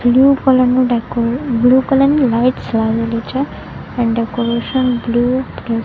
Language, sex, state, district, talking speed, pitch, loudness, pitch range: Gujarati, female, Gujarat, Gandhinagar, 145 wpm, 245 Hz, -15 LUFS, 235-260 Hz